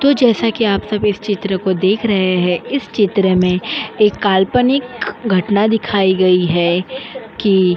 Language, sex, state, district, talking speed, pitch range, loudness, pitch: Hindi, female, Uttar Pradesh, Jyotiba Phule Nagar, 170 wpm, 185-230 Hz, -15 LUFS, 205 Hz